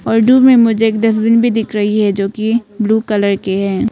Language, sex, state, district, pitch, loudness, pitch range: Hindi, female, Arunachal Pradesh, Papum Pare, 220 Hz, -13 LUFS, 205-230 Hz